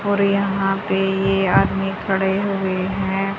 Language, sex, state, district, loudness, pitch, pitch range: Hindi, female, Haryana, Charkhi Dadri, -19 LUFS, 195 Hz, 190-195 Hz